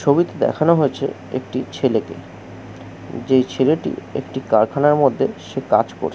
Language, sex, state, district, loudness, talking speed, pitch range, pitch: Bengali, male, West Bengal, Jhargram, -19 LUFS, 135 wpm, 90-145 Hz, 125 Hz